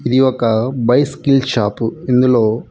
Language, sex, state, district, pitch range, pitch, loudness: Telugu, male, Andhra Pradesh, Chittoor, 115-130 Hz, 125 Hz, -15 LUFS